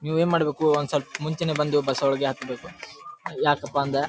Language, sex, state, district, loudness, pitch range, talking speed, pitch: Kannada, male, Karnataka, Dharwad, -24 LUFS, 140-160 Hz, 190 wpm, 150 Hz